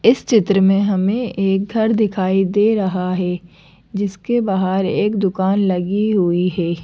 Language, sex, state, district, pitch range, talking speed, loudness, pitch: Hindi, female, Madhya Pradesh, Bhopal, 185-210 Hz, 150 wpm, -17 LUFS, 195 Hz